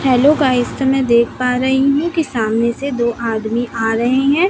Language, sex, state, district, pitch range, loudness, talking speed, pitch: Hindi, female, Chhattisgarh, Raipur, 235-275 Hz, -16 LUFS, 215 wpm, 250 Hz